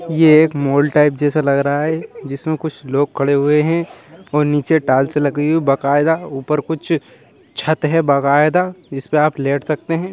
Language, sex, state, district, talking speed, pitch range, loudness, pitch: Hindi, male, Chhattisgarh, Raigarh, 185 wpm, 140-160 Hz, -16 LUFS, 150 Hz